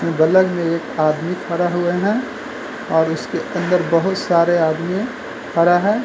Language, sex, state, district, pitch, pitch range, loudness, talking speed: Hindi, male, Uttar Pradesh, Gorakhpur, 175 Hz, 165-185 Hz, -18 LUFS, 150 wpm